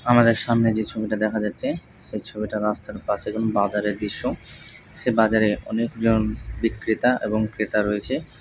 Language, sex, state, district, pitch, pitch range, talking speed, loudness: Bengali, male, West Bengal, North 24 Parganas, 110 Hz, 105-115 Hz, 145 wpm, -23 LUFS